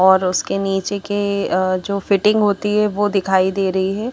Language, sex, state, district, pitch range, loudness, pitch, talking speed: Hindi, female, Haryana, Charkhi Dadri, 190-205 Hz, -18 LUFS, 200 Hz, 205 wpm